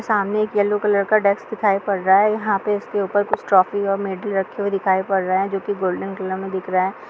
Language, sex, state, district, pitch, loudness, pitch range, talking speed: Hindi, female, Bihar, Kishanganj, 200 Hz, -20 LUFS, 190-205 Hz, 285 wpm